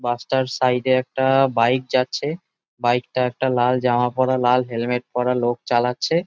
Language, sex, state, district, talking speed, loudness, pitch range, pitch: Bengali, male, West Bengal, Jalpaiguri, 180 wpm, -20 LUFS, 125-130 Hz, 125 Hz